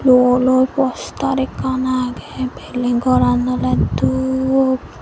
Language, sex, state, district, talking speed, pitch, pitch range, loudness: Chakma, female, Tripura, Dhalai, 95 wpm, 255 Hz, 240-260 Hz, -17 LUFS